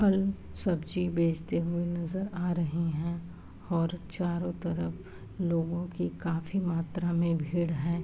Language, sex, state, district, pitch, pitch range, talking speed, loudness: Hindi, female, Uttar Pradesh, Varanasi, 170 Hz, 165-175 Hz, 135 wpm, -31 LUFS